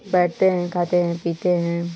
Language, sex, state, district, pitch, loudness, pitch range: Hindi, female, Uttar Pradesh, Varanasi, 175 Hz, -21 LUFS, 170-180 Hz